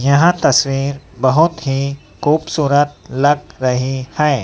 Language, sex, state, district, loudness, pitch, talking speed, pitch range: Hindi, female, Madhya Pradesh, Dhar, -16 LUFS, 140 Hz, 110 wpm, 135-150 Hz